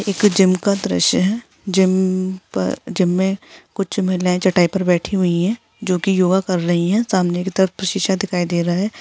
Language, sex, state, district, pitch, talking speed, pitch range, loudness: Hindi, female, Bihar, Jahanabad, 190 Hz, 195 wpm, 180-195 Hz, -18 LUFS